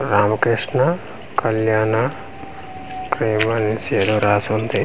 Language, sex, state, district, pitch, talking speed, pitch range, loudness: Telugu, male, Andhra Pradesh, Manyam, 110 Hz, 50 wpm, 110-130 Hz, -19 LUFS